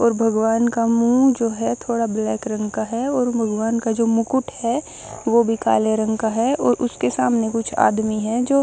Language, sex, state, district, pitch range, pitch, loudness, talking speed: Hindi, male, Odisha, Nuapada, 220-240 Hz, 230 Hz, -20 LUFS, 210 wpm